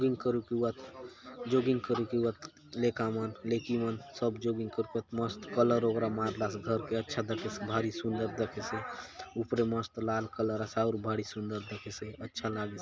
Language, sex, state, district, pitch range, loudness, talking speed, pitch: Halbi, male, Chhattisgarh, Bastar, 110-120 Hz, -34 LUFS, 155 wpm, 115 Hz